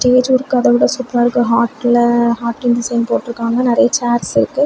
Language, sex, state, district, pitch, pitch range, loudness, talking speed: Tamil, female, Tamil Nadu, Kanyakumari, 240 Hz, 235-250 Hz, -14 LUFS, 205 wpm